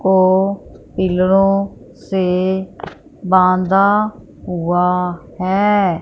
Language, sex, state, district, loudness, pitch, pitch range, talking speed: Hindi, female, Punjab, Fazilka, -16 LUFS, 190 Hz, 180-195 Hz, 60 wpm